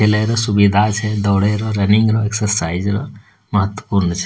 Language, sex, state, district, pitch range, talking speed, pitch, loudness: Angika, male, Bihar, Bhagalpur, 100-105 Hz, 170 wpm, 105 Hz, -16 LUFS